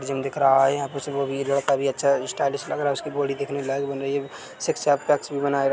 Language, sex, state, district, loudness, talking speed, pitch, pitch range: Hindi, male, Chhattisgarh, Bilaspur, -24 LUFS, 240 wpm, 140 Hz, 135-140 Hz